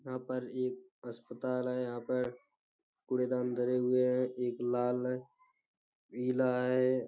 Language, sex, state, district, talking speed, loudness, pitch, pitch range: Hindi, male, Uttar Pradesh, Budaun, 135 wpm, -34 LUFS, 125 Hz, 125-130 Hz